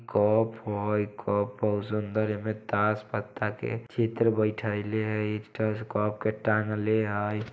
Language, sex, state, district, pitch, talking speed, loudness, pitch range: Maithili, male, Bihar, Samastipur, 105 Hz, 135 wpm, -29 LUFS, 105-110 Hz